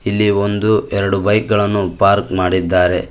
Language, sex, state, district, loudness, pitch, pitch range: Kannada, male, Karnataka, Koppal, -15 LUFS, 100 Hz, 95-105 Hz